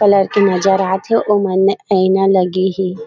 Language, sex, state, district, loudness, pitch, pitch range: Chhattisgarhi, female, Chhattisgarh, Raigarh, -14 LUFS, 195 Hz, 190-200 Hz